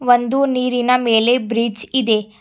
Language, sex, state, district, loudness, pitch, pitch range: Kannada, female, Karnataka, Bidar, -16 LUFS, 245 Hz, 225-250 Hz